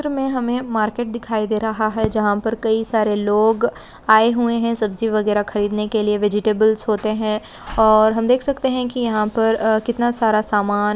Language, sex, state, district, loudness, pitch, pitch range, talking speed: Hindi, female, West Bengal, Purulia, -18 LUFS, 220 Hz, 215-235 Hz, 195 wpm